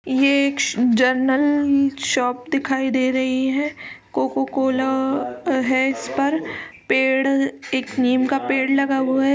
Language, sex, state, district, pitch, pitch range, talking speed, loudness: Hindi, female, Uttar Pradesh, Etah, 265 Hz, 255-275 Hz, 130 wpm, -20 LUFS